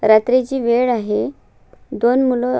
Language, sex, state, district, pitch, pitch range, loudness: Marathi, female, Maharashtra, Sindhudurg, 245 Hz, 230-255 Hz, -17 LUFS